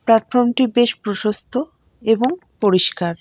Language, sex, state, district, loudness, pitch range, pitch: Bengali, female, West Bengal, Alipurduar, -16 LUFS, 205-250 Hz, 225 Hz